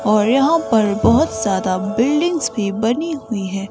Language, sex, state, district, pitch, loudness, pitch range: Hindi, female, Himachal Pradesh, Shimla, 220 Hz, -17 LUFS, 205-285 Hz